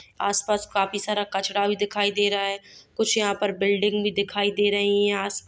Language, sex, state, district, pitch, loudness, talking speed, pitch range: Hindi, female, Bihar, Gopalganj, 205 Hz, -23 LUFS, 220 wpm, 200-205 Hz